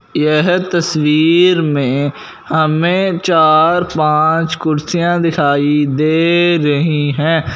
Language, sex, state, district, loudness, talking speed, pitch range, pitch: Hindi, male, Punjab, Fazilka, -13 LUFS, 85 wpm, 150-170 Hz, 160 Hz